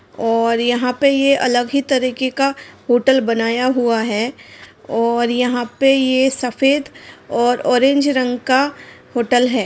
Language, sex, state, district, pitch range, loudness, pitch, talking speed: Hindi, female, Bihar, Madhepura, 240-270 Hz, -16 LUFS, 250 Hz, 145 wpm